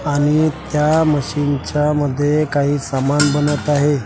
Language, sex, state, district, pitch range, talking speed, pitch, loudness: Marathi, male, Maharashtra, Washim, 145-150 Hz, 120 wpm, 145 Hz, -17 LUFS